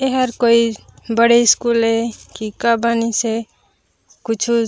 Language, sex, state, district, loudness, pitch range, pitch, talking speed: Chhattisgarhi, female, Chhattisgarh, Raigarh, -16 LUFS, 225-235 Hz, 230 Hz, 130 wpm